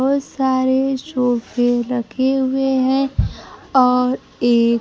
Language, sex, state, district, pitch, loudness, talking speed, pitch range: Hindi, female, Bihar, Kaimur, 260 Hz, -18 LUFS, 100 wpm, 245-265 Hz